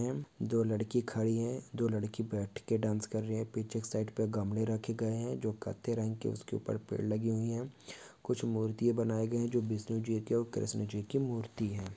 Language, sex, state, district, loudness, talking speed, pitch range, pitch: Hindi, male, Uttar Pradesh, Varanasi, -35 LUFS, 220 wpm, 110-115 Hz, 110 Hz